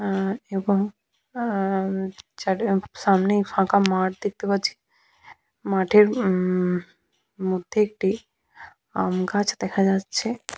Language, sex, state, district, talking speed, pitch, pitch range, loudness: Bengali, female, West Bengal, Malda, 85 wpm, 195 Hz, 190-210 Hz, -23 LUFS